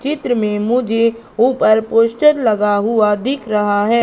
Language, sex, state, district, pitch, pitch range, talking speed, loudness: Hindi, female, Madhya Pradesh, Katni, 225 Hz, 210-245 Hz, 150 wpm, -15 LUFS